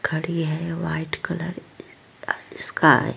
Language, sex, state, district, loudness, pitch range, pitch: Hindi, female, Bihar, Vaishali, -23 LUFS, 155-165 Hz, 165 Hz